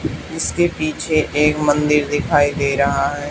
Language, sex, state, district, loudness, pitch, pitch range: Hindi, female, Haryana, Charkhi Dadri, -17 LUFS, 145 Hz, 145-150 Hz